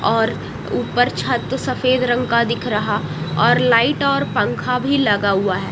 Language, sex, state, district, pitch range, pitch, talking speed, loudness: Hindi, female, Maharashtra, Washim, 205-255 Hz, 235 Hz, 170 wpm, -18 LUFS